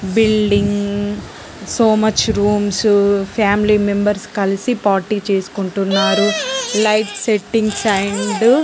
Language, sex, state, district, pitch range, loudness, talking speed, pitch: Telugu, female, Andhra Pradesh, Guntur, 200-215 Hz, -16 LUFS, 90 wpm, 210 Hz